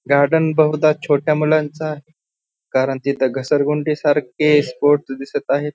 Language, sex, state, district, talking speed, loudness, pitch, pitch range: Marathi, male, Maharashtra, Pune, 125 wpm, -18 LUFS, 145 Hz, 140-155 Hz